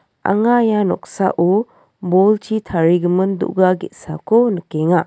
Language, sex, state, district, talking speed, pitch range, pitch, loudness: Garo, female, Meghalaya, West Garo Hills, 95 wpm, 175-215 Hz, 190 Hz, -16 LUFS